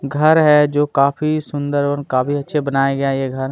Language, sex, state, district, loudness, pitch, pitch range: Hindi, male, Chhattisgarh, Kabirdham, -17 LUFS, 145 Hz, 135-150 Hz